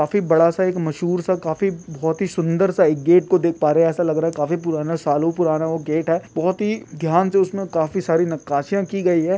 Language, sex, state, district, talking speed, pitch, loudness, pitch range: Hindi, male, Rajasthan, Churu, 250 wpm, 170 Hz, -19 LUFS, 160-185 Hz